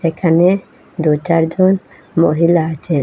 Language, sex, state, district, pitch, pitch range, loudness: Bengali, female, Assam, Hailakandi, 165 Hz, 160-185 Hz, -15 LUFS